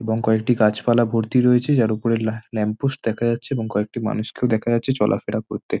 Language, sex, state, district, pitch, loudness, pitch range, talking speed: Bengali, male, West Bengal, Jhargram, 115 Hz, -21 LUFS, 110-120 Hz, 185 wpm